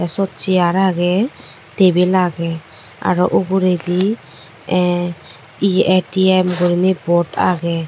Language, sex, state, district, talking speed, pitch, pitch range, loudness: Chakma, male, Tripura, Dhalai, 85 wpm, 180 Hz, 170-185 Hz, -16 LUFS